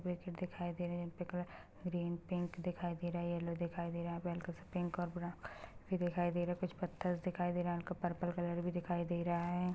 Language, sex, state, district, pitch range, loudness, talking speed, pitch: Hindi, female, Chhattisgarh, Rajnandgaon, 175-180 Hz, -41 LUFS, 265 wpm, 175 Hz